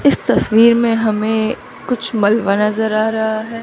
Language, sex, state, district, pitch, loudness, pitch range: Hindi, female, Chandigarh, Chandigarh, 220 Hz, -15 LUFS, 215-230 Hz